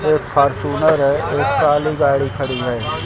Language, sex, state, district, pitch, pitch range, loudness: Hindi, male, Uttar Pradesh, Lucknow, 140 Hz, 130-150 Hz, -17 LUFS